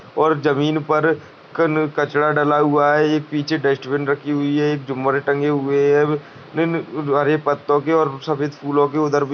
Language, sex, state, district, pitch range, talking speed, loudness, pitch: Hindi, male, Chhattisgarh, Bastar, 145-155 Hz, 180 wpm, -19 LUFS, 145 Hz